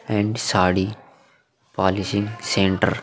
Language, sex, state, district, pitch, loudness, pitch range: Hindi, male, Bihar, Vaishali, 100 Hz, -21 LUFS, 95-105 Hz